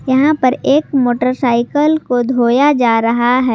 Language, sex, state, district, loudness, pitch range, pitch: Hindi, female, Jharkhand, Garhwa, -13 LUFS, 240-285 Hz, 255 Hz